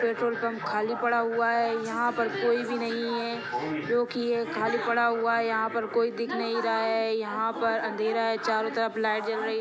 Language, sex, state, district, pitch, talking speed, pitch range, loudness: Hindi, female, Maharashtra, Dhule, 230 Hz, 220 wpm, 220-235 Hz, -27 LUFS